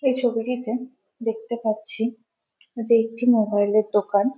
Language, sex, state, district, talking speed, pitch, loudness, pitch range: Bengali, female, West Bengal, Malda, 110 wpm, 230 Hz, -23 LUFS, 215-245 Hz